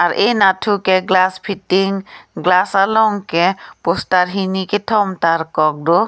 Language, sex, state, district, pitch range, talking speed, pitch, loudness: Karbi, female, Assam, Karbi Anglong, 180-200 Hz, 140 wpm, 190 Hz, -16 LUFS